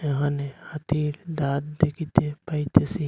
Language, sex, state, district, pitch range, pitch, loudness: Bengali, male, Assam, Hailakandi, 145-155 Hz, 150 Hz, -26 LUFS